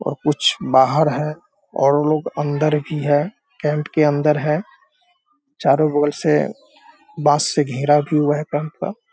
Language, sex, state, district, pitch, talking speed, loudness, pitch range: Hindi, male, Bihar, Sitamarhi, 150 Hz, 160 wpm, -18 LUFS, 145-165 Hz